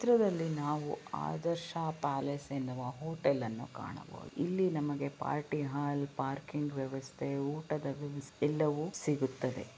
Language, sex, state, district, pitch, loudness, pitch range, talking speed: Kannada, female, Karnataka, Belgaum, 145 Hz, -36 LUFS, 140-155 Hz, 110 wpm